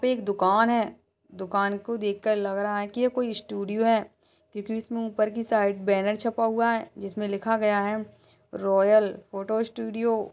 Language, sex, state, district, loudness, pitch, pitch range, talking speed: Hindi, female, Uttar Pradesh, Budaun, -26 LUFS, 215 Hz, 200-225 Hz, 185 wpm